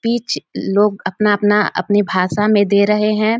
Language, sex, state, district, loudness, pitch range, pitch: Hindi, female, Bihar, Samastipur, -16 LUFS, 205-215 Hz, 210 Hz